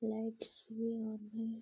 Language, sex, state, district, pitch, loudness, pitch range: Hindi, female, Bihar, Gaya, 225 Hz, -42 LUFS, 220-225 Hz